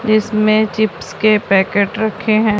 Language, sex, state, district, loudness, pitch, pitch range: Hindi, female, Punjab, Pathankot, -15 LUFS, 215 Hz, 205-215 Hz